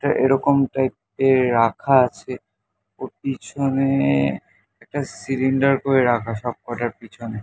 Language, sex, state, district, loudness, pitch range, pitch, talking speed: Bengali, male, West Bengal, North 24 Parganas, -20 LUFS, 115-135 Hz, 125 Hz, 115 wpm